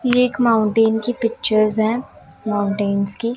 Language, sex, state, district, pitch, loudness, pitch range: Hindi, female, Punjab, Kapurthala, 220 Hz, -18 LUFS, 210-240 Hz